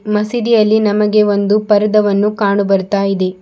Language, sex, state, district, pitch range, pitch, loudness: Kannada, female, Karnataka, Bidar, 200-215 Hz, 210 Hz, -13 LUFS